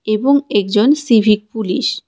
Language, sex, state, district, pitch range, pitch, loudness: Bengali, female, West Bengal, Cooch Behar, 210-275 Hz, 215 Hz, -14 LUFS